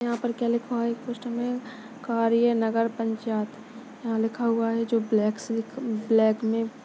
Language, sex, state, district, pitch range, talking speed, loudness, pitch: Hindi, female, Chhattisgarh, Bastar, 225-240 Hz, 185 wpm, -26 LUFS, 230 Hz